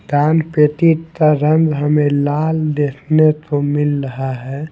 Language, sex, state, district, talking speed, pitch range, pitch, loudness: Hindi, male, Maharashtra, Gondia, 140 wpm, 145-155 Hz, 150 Hz, -15 LUFS